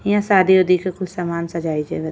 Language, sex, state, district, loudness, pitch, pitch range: Bhojpuri, female, Uttar Pradesh, Ghazipur, -18 LUFS, 180 Hz, 170-190 Hz